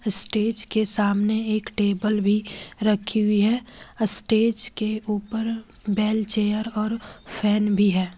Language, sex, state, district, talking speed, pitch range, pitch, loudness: Hindi, female, Jharkhand, Ranchi, 130 wpm, 210-220 Hz, 215 Hz, -21 LUFS